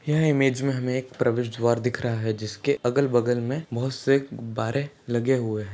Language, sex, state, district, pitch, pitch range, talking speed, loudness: Hindi, male, Uttar Pradesh, Ghazipur, 125 Hz, 120-135 Hz, 200 wpm, -25 LUFS